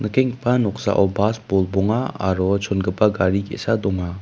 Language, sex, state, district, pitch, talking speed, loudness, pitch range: Garo, male, Meghalaya, West Garo Hills, 100 Hz, 115 wpm, -20 LUFS, 95-110 Hz